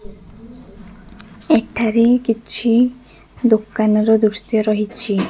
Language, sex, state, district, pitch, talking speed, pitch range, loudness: Odia, female, Odisha, Khordha, 215 Hz, 55 wpm, 210-230 Hz, -16 LUFS